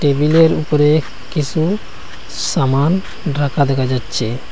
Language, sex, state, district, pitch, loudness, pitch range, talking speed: Bengali, male, Assam, Hailakandi, 145 Hz, -16 LUFS, 135-160 Hz, 95 wpm